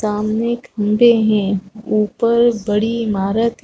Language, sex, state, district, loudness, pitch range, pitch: Hindi, female, Chhattisgarh, Rajnandgaon, -17 LUFS, 210-230 Hz, 215 Hz